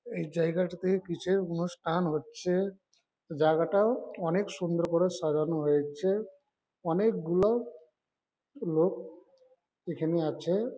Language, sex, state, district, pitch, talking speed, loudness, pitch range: Bengali, male, West Bengal, Malda, 175 Hz, 90 wpm, -30 LUFS, 165-195 Hz